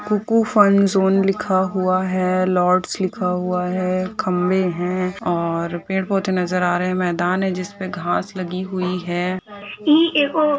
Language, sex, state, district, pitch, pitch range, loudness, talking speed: Hindi, female, Rajasthan, Churu, 185 Hz, 180-195 Hz, -20 LUFS, 145 wpm